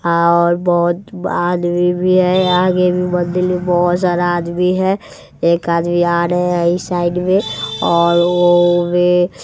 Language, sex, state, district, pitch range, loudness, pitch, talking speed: Hindi, male, Bihar, West Champaran, 175-180 Hz, -15 LUFS, 175 Hz, 165 wpm